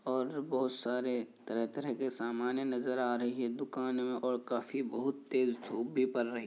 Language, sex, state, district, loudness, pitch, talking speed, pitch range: Hindi, male, Bihar, Kishanganj, -35 LUFS, 125 Hz, 175 wpm, 120-130 Hz